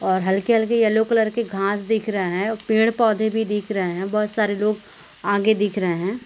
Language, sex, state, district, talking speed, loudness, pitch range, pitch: Hindi, female, Chhattisgarh, Korba, 240 wpm, -21 LUFS, 200-220 Hz, 210 Hz